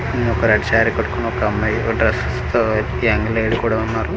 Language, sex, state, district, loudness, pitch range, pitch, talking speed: Telugu, male, Andhra Pradesh, Manyam, -18 LUFS, 110-115 Hz, 115 Hz, 200 wpm